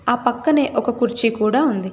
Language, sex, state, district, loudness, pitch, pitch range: Telugu, female, Telangana, Komaram Bheem, -19 LUFS, 245 Hz, 220-265 Hz